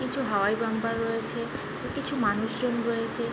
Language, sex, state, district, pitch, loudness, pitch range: Bengali, female, West Bengal, Jhargram, 230 Hz, -28 LUFS, 225-245 Hz